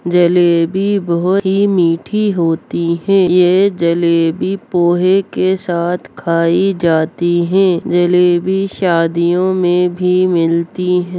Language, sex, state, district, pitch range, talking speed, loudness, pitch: Hindi, female, Bihar, Darbhanga, 170-190 Hz, 115 wpm, -14 LUFS, 180 Hz